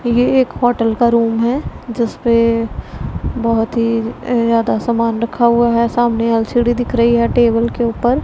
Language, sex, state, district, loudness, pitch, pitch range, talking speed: Hindi, female, Punjab, Pathankot, -15 LUFS, 235 Hz, 230-240 Hz, 165 wpm